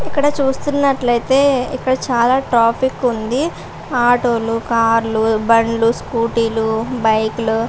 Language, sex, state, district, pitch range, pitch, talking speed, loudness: Telugu, female, Andhra Pradesh, Srikakulam, 230-260 Hz, 235 Hz, 100 wpm, -16 LUFS